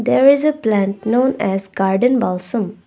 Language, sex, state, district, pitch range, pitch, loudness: English, female, Assam, Kamrup Metropolitan, 195-250 Hz, 215 Hz, -16 LUFS